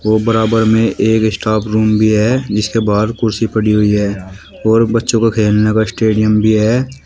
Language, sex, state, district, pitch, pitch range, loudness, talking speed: Hindi, male, Uttar Pradesh, Shamli, 110 Hz, 105-115 Hz, -13 LUFS, 185 wpm